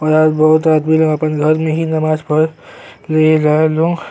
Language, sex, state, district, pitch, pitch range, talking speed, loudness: Bhojpuri, male, Uttar Pradesh, Gorakhpur, 155 Hz, 155-160 Hz, 175 wpm, -13 LUFS